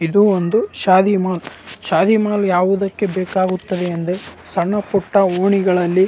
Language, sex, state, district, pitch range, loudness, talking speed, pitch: Kannada, male, Karnataka, Raichur, 185-200 Hz, -17 LUFS, 120 wpm, 190 Hz